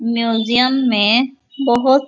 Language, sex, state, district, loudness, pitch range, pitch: Hindi, female, Bihar, Gopalganj, -16 LUFS, 230-265 Hz, 245 Hz